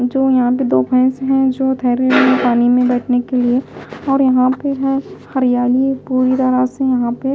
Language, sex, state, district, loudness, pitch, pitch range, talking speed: Hindi, female, Himachal Pradesh, Shimla, -15 LUFS, 255 Hz, 250-265 Hz, 195 wpm